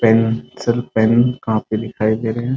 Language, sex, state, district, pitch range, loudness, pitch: Hindi, male, Bihar, Muzaffarpur, 110-120 Hz, -18 LUFS, 115 Hz